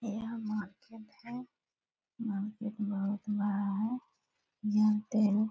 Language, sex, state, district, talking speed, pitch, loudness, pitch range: Hindi, female, Bihar, Purnia, 85 wpm, 215 Hz, -34 LUFS, 205-225 Hz